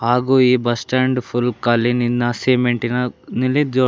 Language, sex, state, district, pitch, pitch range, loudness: Kannada, male, Karnataka, Bangalore, 125 Hz, 120-130 Hz, -18 LUFS